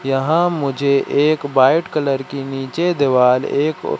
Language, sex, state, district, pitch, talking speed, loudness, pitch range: Hindi, male, Madhya Pradesh, Katni, 140 Hz, 135 wpm, -17 LUFS, 135-155 Hz